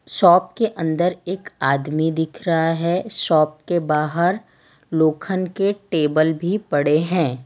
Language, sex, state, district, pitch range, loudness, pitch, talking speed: Hindi, female, Gujarat, Valsad, 155-185 Hz, -20 LUFS, 165 Hz, 135 wpm